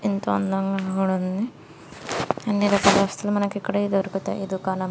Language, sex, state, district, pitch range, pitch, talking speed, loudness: Telugu, female, Andhra Pradesh, Srikakulam, 190-205 Hz, 195 Hz, 160 wpm, -24 LUFS